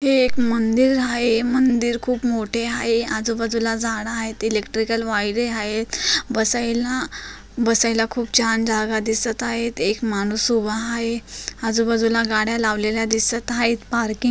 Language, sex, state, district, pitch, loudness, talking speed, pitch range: Marathi, female, Maharashtra, Solapur, 230 Hz, -20 LUFS, 125 wpm, 220-235 Hz